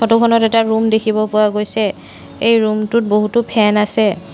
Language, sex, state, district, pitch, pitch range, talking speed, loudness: Assamese, female, Assam, Sonitpur, 215 Hz, 210-225 Hz, 150 wpm, -14 LUFS